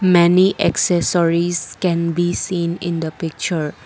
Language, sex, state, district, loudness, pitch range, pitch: English, female, Assam, Kamrup Metropolitan, -18 LUFS, 170-180 Hz, 175 Hz